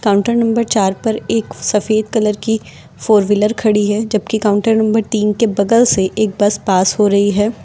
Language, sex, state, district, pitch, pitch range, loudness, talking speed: Hindi, female, Uttar Pradesh, Lucknow, 210 Hz, 205-220 Hz, -14 LUFS, 195 wpm